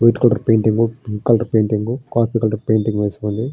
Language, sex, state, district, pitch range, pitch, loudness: Telugu, male, Andhra Pradesh, Srikakulam, 110-115 Hz, 110 Hz, -18 LUFS